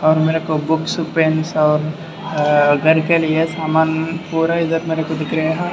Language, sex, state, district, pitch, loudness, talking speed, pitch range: Hindi, male, Maharashtra, Dhule, 160 Hz, -17 LUFS, 165 wpm, 155-165 Hz